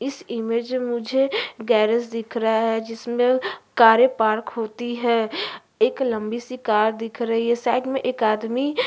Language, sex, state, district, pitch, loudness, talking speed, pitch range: Hindi, female, Uttarakhand, Tehri Garhwal, 235 Hz, -22 LUFS, 160 wpm, 225-250 Hz